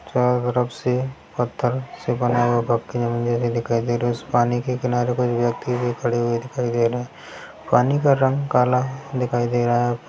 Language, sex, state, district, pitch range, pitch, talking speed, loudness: Hindi, male, Bihar, Sitamarhi, 120-125 Hz, 120 Hz, 145 wpm, -21 LUFS